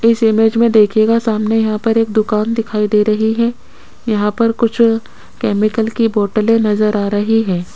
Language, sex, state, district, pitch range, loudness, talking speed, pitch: Hindi, female, Rajasthan, Jaipur, 215-225 Hz, -14 LUFS, 180 wpm, 220 Hz